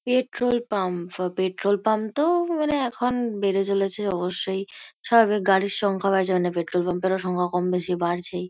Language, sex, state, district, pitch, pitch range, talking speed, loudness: Bengali, female, West Bengal, Kolkata, 195 Hz, 180-225 Hz, 155 wpm, -24 LUFS